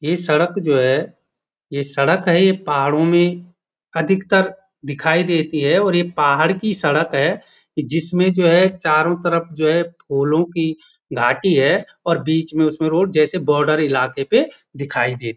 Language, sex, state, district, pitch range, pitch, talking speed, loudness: Hindi, male, Uttarakhand, Uttarkashi, 150-175 Hz, 160 Hz, 165 wpm, -17 LUFS